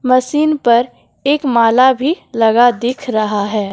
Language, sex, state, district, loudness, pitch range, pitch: Hindi, female, Jharkhand, Deoghar, -14 LUFS, 230-265 Hz, 245 Hz